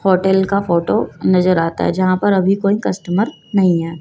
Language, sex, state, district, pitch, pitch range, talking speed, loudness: Hindi, female, Madhya Pradesh, Dhar, 185 Hz, 175-195 Hz, 195 wpm, -16 LUFS